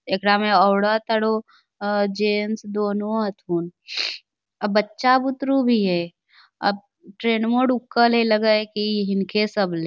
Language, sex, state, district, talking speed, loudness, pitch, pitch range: Magahi, female, Bihar, Lakhisarai, 150 wpm, -21 LUFS, 210 Hz, 200-225 Hz